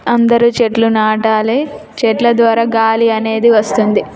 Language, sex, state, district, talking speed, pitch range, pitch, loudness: Telugu, female, Telangana, Nalgonda, 115 wpm, 220-235 Hz, 225 Hz, -12 LUFS